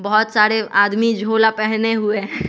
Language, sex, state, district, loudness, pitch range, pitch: Hindi, male, Bihar, West Champaran, -17 LUFS, 210-220 Hz, 215 Hz